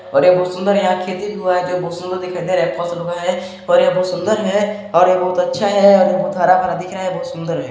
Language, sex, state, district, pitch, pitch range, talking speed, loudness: Hindi, male, Chhattisgarh, Balrampur, 180 Hz, 175-190 Hz, 320 wpm, -16 LUFS